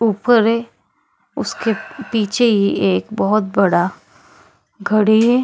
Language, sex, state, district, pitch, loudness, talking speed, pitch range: Hindi, female, Goa, North and South Goa, 220 Hz, -17 LUFS, 110 wpm, 200-230 Hz